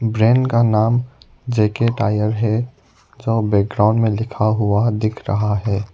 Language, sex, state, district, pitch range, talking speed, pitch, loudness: Hindi, male, Arunachal Pradesh, Lower Dibang Valley, 105-115 Hz, 140 wpm, 110 Hz, -18 LUFS